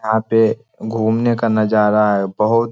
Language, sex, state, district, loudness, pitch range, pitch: Hindi, male, Jharkhand, Sahebganj, -16 LUFS, 105-115 Hz, 110 Hz